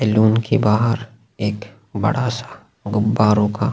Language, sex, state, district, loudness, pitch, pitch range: Hindi, male, Chhattisgarh, Sukma, -19 LUFS, 110 Hz, 105-115 Hz